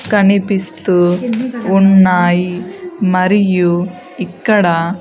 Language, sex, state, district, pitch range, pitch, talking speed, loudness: Telugu, female, Andhra Pradesh, Sri Satya Sai, 180-195 Hz, 185 Hz, 50 wpm, -13 LUFS